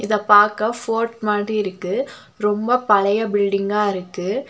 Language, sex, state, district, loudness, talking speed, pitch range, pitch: Tamil, female, Tamil Nadu, Nilgiris, -19 LUFS, 120 wpm, 200-220 Hz, 210 Hz